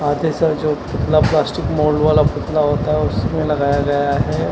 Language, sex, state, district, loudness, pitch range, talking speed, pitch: Hindi, male, Punjab, Kapurthala, -17 LUFS, 145-155 Hz, 185 wpm, 150 Hz